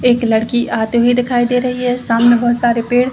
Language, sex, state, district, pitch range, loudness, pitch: Hindi, female, Chhattisgarh, Rajnandgaon, 235-245 Hz, -14 LUFS, 240 Hz